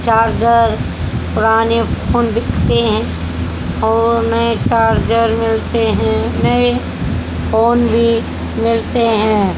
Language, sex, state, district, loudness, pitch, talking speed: Hindi, female, Haryana, Jhajjar, -15 LUFS, 225 Hz, 95 wpm